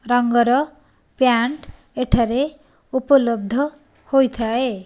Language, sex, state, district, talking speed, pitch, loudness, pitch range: Odia, female, Odisha, Nuapada, 60 wpm, 250 Hz, -19 LUFS, 235-275 Hz